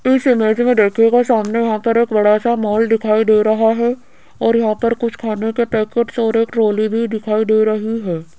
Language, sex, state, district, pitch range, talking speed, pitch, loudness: Hindi, female, Rajasthan, Jaipur, 215-235 Hz, 205 wpm, 225 Hz, -15 LUFS